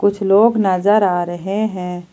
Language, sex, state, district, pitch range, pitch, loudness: Hindi, female, Jharkhand, Ranchi, 180-205 Hz, 195 Hz, -16 LUFS